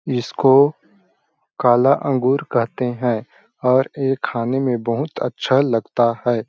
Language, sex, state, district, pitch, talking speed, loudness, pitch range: Hindi, male, Chhattisgarh, Balrampur, 125 Hz, 130 wpm, -18 LUFS, 120-135 Hz